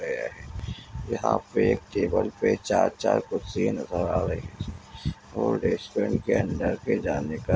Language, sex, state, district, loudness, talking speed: Hindi, male, Bihar, Begusarai, -27 LUFS, 125 wpm